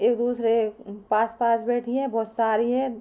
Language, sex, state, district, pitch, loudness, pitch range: Hindi, female, Uttar Pradesh, Ghazipur, 230 Hz, -24 LUFS, 220-245 Hz